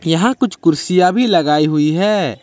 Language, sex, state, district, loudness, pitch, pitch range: Hindi, male, Jharkhand, Ranchi, -14 LUFS, 180 Hz, 155-210 Hz